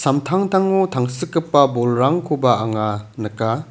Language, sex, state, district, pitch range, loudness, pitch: Garo, male, Meghalaya, South Garo Hills, 115-170 Hz, -18 LUFS, 135 Hz